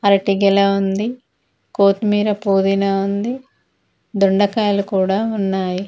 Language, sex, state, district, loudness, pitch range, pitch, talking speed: Telugu, female, Telangana, Mahabubabad, -17 LUFS, 195-210 Hz, 200 Hz, 90 wpm